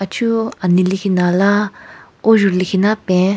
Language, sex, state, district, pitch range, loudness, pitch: Rengma, female, Nagaland, Kohima, 185-210 Hz, -15 LUFS, 195 Hz